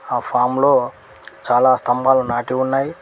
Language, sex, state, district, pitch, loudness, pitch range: Telugu, male, Telangana, Mahabubabad, 130 Hz, -17 LUFS, 125-135 Hz